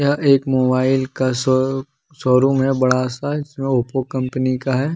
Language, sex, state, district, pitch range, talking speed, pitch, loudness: Hindi, male, Jharkhand, Deoghar, 130-135 Hz, 170 wpm, 130 Hz, -18 LUFS